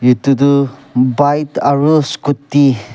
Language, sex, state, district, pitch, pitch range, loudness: Nagamese, male, Nagaland, Kohima, 140 Hz, 130-145 Hz, -13 LUFS